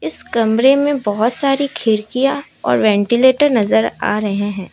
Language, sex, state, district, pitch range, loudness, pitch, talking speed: Hindi, female, Assam, Kamrup Metropolitan, 205-275 Hz, -15 LUFS, 230 Hz, 150 wpm